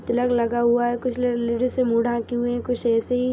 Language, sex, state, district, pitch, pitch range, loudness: Hindi, female, Jharkhand, Sahebganj, 240 Hz, 235-245 Hz, -22 LUFS